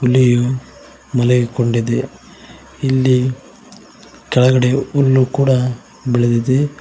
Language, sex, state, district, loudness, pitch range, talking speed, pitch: Kannada, male, Karnataka, Koppal, -16 LUFS, 125-130 Hz, 60 wpm, 125 Hz